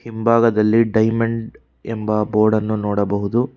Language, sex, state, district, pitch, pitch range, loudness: Kannada, male, Karnataka, Bangalore, 110 Hz, 105-115 Hz, -18 LUFS